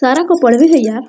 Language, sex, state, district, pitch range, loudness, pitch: Hindi, female, Bihar, Araria, 240-325 Hz, -10 LUFS, 260 Hz